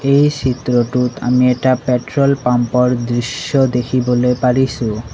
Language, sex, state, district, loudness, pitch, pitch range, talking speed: Assamese, male, Assam, Sonitpur, -15 LUFS, 125 Hz, 125-130 Hz, 115 wpm